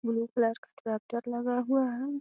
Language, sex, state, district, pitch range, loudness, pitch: Magahi, female, Bihar, Gaya, 230-250 Hz, -31 LUFS, 240 Hz